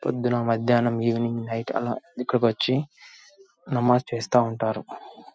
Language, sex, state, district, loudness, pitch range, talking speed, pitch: Telugu, male, Telangana, Karimnagar, -24 LUFS, 115-125 Hz, 110 wpm, 120 Hz